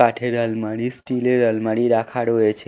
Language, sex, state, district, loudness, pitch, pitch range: Bengali, male, Odisha, Khordha, -20 LUFS, 115 Hz, 110-120 Hz